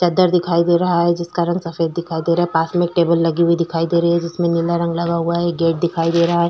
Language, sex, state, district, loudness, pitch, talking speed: Hindi, female, Bihar, Vaishali, -17 LUFS, 170 Hz, 340 wpm